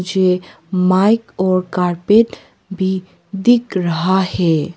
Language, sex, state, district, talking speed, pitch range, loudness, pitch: Hindi, female, Arunachal Pradesh, Papum Pare, 100 wpm, 180-195 Hz, -16 LUFS, 185 Hz